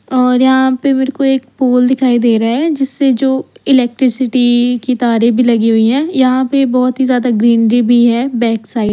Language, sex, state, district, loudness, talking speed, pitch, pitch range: Hindi, female, Chandigarh, Chandigarh, -12 LUFS, 210 wpm, 250 Hz, 235-265 Hz